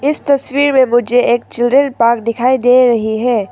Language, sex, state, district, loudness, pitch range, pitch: Hindi, female, Arunachal Pradesh, Papum Pare, -12 LUFS, 235-270 Hz, 245 Hz